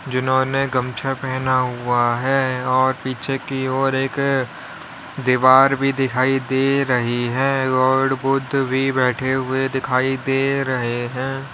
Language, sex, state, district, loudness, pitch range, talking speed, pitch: Hindi, male, Uttar Pradesh, Lalitpur, -19 LUFS, 130-135 Hz, 130 wpm, 130 Hz